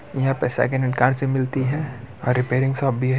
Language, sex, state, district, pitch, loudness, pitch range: Hindi, male, Bihar, Muzaffarpur, 130 Hz, -22 LUFS, 125-135 Hz